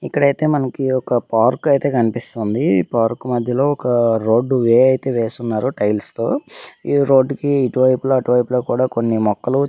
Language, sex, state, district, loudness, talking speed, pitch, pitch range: Telugu, male, Karnataka, Raichur, -17 LUFS, 165 wpm, 125 Hz, 115-135 Hz